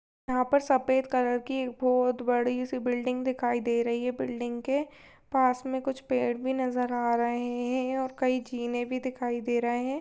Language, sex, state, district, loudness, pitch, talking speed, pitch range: Hindi, female, Goa, North and South Goa, -29 LUFS, 250 Hz, 190 wpm, 245-260 Hz